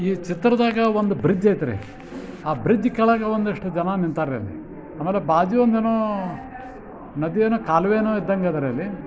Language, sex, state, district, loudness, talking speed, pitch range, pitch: Kannada, male, Karnataka, Bijapur, -21 LUFS, 120 wpm, 165-225 Hz, 200 Hz